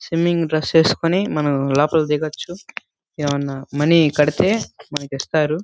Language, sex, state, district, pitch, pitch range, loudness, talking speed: Telugu, male, Andhra Pradesh, Guntur, 155 Hz, 145-165 Hz, -19 LUFS, 95 wpm